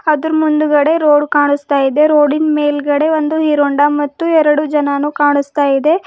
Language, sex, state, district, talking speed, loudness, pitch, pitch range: Kannada, female, Karnataka, Bidar, 150 wpm, -13 LUFS, 295 Hz, 290-310 Hz